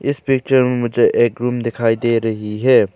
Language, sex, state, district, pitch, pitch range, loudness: Hindi, male, Arunachal Pradesh, Lower Dibang Valley, 120 Hz, 115-130 Hz, -16 LUFS